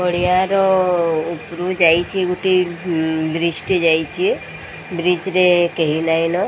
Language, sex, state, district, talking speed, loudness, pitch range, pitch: Odia, female, Odisha, Sambalpur, 100 wpm, -17 LUFS, 165-185 Hz, 175 Hz